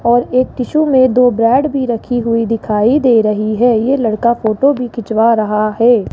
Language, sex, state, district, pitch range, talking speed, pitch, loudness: Hindi, male, Rajasthan, Jaipur, 225-250 Hz, 195 wpm, 235 Hz, -13 LUFS